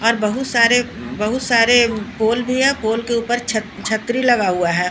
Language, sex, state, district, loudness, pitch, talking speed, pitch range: Hindi, female, Bihar, Patna, -17 LUFS, 230 Hz, 185 wpm, 215-245 Hz